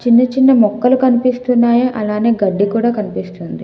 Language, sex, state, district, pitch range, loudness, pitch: Telugu, female, Telangana, Hyderabad, 215-250 Hz, -13 LUFS, 240 Hz